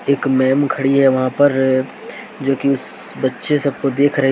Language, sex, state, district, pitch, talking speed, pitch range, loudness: Hindi, male, Jharkhand, Deoghar, 135 Hz, 210 wpm, 135-140 Hz, -16 LUFS